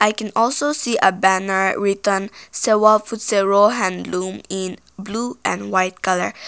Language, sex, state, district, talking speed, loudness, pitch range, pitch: English, female, Nagaland, Kohima, 140 wpm, -19 LUFS, 190-220 Hz, 200 Hz